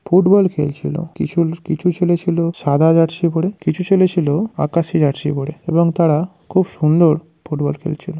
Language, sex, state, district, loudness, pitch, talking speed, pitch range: Bengali, male, West Bengal, North 24 Parganas, -17 LUFS, 165 Hz, 155 wpm, 155-175 Hz